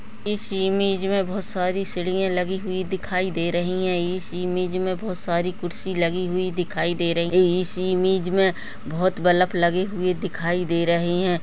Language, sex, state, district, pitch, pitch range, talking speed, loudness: Hindi, female, Uttarakhand, Tehri Garhwal, 180 Hz, 175-190 Hz, 180 wpm, -23 LUFS